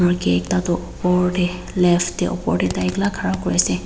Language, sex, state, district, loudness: Nagamese, female, Nagaland, Dimapur, -20 LUFS